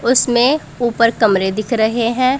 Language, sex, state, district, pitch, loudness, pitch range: Hindi, female, Punjab, Pathankot, 235 Hz, -15 LUFS, 220-250 Hz